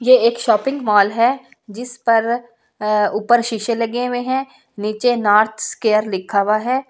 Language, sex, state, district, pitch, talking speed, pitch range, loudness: Hindi, female, Delhi, New Delhi, 230 Hz, 165 wpm, 215-245 Hz, -17 LUFS